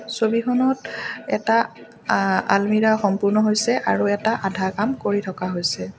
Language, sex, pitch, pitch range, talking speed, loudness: Assamese, female, 210 Hz, 195-225 Hz, 130 wpm, -21 LUFS